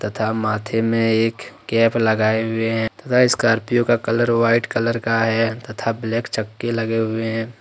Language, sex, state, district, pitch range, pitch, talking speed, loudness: Hindi, male, Jharkhand, Ranchi, 110-115 Hz, 115 Hz, 175 wpm, -19 LUFS